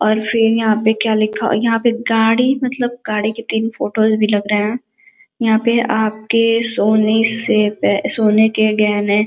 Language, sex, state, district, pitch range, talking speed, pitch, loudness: Hindi, female, Uttar Pradesh, Gorakhpur, 215-230 Hz, 180 wpm, 220 Hz, -15 LUFS